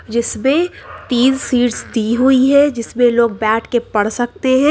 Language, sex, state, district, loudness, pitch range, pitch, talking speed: Hindi, male, Uttar Pradesh, Lucknow, -15 LUFS, 230-265 Hz, 245 Hz, 165 wpm